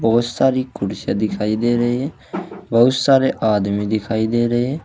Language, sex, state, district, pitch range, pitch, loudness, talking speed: Hindi, male, Uttar Pradesh, Saharanpur, 110-130 Hz, 120 Hz, -18 LUFS, 175 wpm